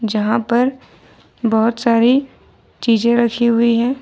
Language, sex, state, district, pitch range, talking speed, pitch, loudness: Hindi, female, Jharkhand, Ranchi, 230-240 Hz, 120 wpm, 235 Hz, -16 LUFS